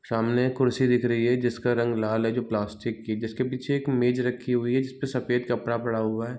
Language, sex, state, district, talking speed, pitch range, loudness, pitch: Hindi, male, Bihar, East Champaran, 255 wpm, 115-125 Hz, -26 LUFS, 120 Hz